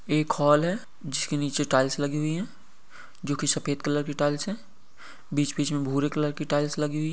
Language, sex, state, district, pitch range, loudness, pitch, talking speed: Hindi, male, Uttar Pradesh, Etah, 145-155 Hz, -27 LUFS, 145 Hz, 210 wpm